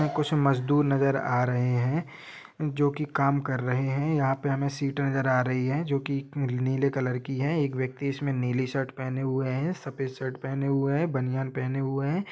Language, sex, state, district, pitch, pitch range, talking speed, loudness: Hindi, male, Jharkhand, Jamtara, 135 Hz, 130-140 Hz, 210 wpm, -27 LUFS